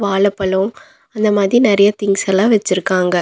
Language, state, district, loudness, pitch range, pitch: Tamil, Tamil Nadu, Nilgiris, -15 LUFS, 195-215 Hz, 200 Hz